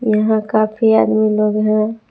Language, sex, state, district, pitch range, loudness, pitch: Hindi, female, Jharkhand, Palamu, 215-220 Hz, -15 LUFS, 215 Hz